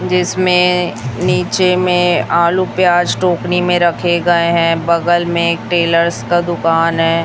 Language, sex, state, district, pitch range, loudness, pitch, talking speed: Hindi, female, Chhattisgarh, Raipur, 170-180 Hz, -13 LUFS, 175 Hz, 140 wpm